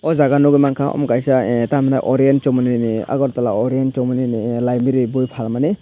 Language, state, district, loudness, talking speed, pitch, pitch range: Kokborok, Tripura, Dhalai, -17 LUFS, 165 wpm, 130 Hz, 120-140 Hz